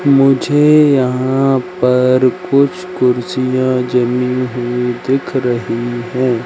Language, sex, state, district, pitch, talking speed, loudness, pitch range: Hindi, male, Madhya Pradesh, Katni, 130 Hz, 95 wpm, -14 LUFS, 125-135 Hz